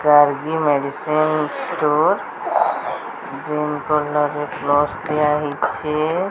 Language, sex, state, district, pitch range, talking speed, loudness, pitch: Odia, female, Odisha, Sambalpur, 145-150 Hz, 75 wpm, -19 LUFS, 150 Hz